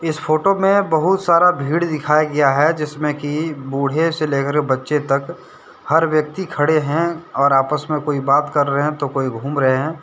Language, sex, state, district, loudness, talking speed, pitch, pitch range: Hindi, male, Jharkhand, Deoghar, -17 LUFS, 195 wpm, 150 Hz, 140-160 Hz